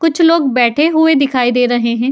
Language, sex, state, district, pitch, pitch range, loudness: Hindi, female, Uttar Pradesh, Muzaffarnagar, 270 Hz, 245-320 Hz, -12 LUFS